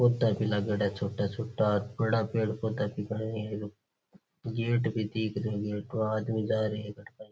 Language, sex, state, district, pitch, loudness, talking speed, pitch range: Rajasthani, male, Rajasthan, Churu, 110 Hz, -31 LUFS, 180 wpm, 105-110 Hz